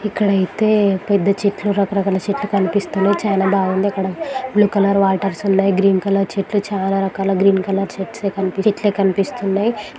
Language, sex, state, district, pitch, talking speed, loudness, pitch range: Telugu, female, Andhra Pradesh, Chittoor, 195 Hz, 155 wpm, -17 LUFS, 195-205 Hz